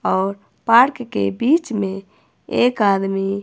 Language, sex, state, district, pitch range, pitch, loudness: Hindi, female, Himachal Pradesh, Shimla, 195-240 Hz, 200 Hz, -18 LUFS